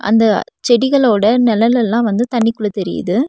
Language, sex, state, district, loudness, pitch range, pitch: Tamil, female, Tamil Nadu, Nilgiris, -14 LUFS, 215-240 Hz, 230 Hz